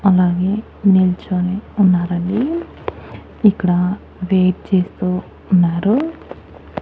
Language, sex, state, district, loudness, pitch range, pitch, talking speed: Telugu, female, Andhra Pradesh, Annamaya, -17 LUFS, 180-200 Hz, 185 Hz, 60 wpm